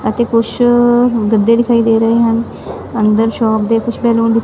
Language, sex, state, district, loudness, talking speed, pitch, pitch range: Punjabi, female, Punjab, Fazilka, -12 LUFS, 175 wpm, 230 Hz, 225-235 Hz